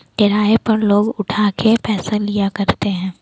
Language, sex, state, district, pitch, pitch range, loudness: Hindi, female, Bihar, Jamui, 210 Hz, 200-215 Hz, -16 LUFS